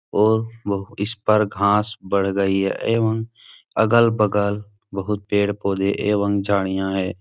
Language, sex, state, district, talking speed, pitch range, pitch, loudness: Hindi, male, Bihar, Supaul, 125 wpm, 100-110 Hz, 100 Hz, -21 LUFS